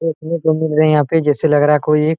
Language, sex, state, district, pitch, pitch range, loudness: Hindi, male, Bihar, Araria, 155 Hz, 150-160 Hz, -15 LUFS